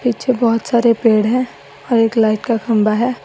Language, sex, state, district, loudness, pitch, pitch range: Hindi, female, Assam, Sonitpur, -15 LUFS, 230 Hz, 225-245 Hz